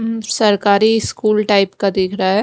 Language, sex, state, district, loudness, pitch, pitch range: Hindi, female, Bihar, West Champaran, -15 LUFS, 210 Hz, 195-220 Hz